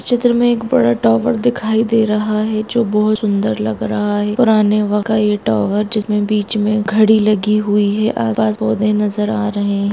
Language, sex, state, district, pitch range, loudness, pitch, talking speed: Hindi, female, Jharkhand, Jamtara, 205-220 Hz, -15 LUFS, 210 Hz, 215 wpm